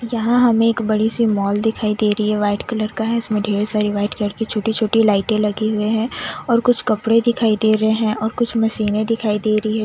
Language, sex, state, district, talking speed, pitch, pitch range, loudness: Hindi, female, Chandigarh, Chandigarh, 245 wpm, 220 Hz, 210-225 Hz, -18 LUFS